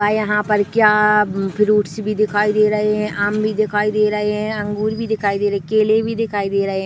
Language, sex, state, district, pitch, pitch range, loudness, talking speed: Hindi, female, Chhattisgarh, Bilaspur, 210 Hz, 205-215 Hz, -17 LUFS, 245 wpm